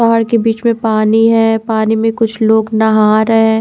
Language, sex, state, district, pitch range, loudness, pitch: Hindi, female, Haryana, Charkhi Dadri, 220-225 Hz, -12 LUFS, 225 Hz